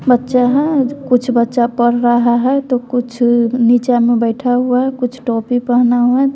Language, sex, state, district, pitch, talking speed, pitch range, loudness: Hindi, female, Bihar, West Champaran, 245 Hz, 170 wpm, 240-255 Hz, -14 LUFS